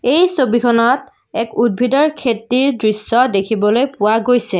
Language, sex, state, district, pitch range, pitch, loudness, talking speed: Assamese, female, Assam, Kamrup Metropolitan, 220-270 Hz, 240 Hz, -15 LUFS, 120 wpm